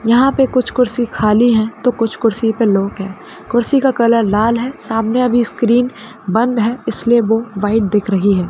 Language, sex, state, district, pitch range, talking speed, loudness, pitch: Hindi, female, Rajasthan, Churu, 215-240 Hz, 200 wpm, -15 LUFS, 230 Hz